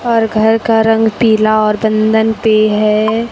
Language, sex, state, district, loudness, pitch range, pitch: Hindi, female, Chhattisgarh, Raipur, -12 LUFS, 215-225 Hz, 220 Hz